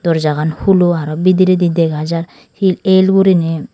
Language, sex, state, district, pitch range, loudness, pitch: Chakma, female, Tripura, Dhalai, 160-185 Hz, -13 LUFS, 175 Hz